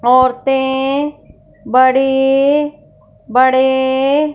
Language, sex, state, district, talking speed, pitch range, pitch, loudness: Hindi, female, Punjab, Fazilka, 40 wpm, 260-280 Hz, 265 Hz, -13 LUFS